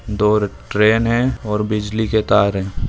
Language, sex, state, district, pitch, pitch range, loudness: Hindi, male, Rajasthan, Churu, 105 Hz, 105-110 Hz, -17 LUFS